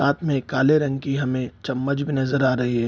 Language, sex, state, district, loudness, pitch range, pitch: Hindi, male, Bihar, Gopalganj, -22 LUFS, 130-140 Hz, 135 Hz